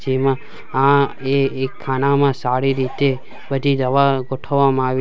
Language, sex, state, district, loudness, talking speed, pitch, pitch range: Gujarati, male, Gujarat, Valsad, -18 LUFS, 145 wpm, 135 Hz, 130-140 Hz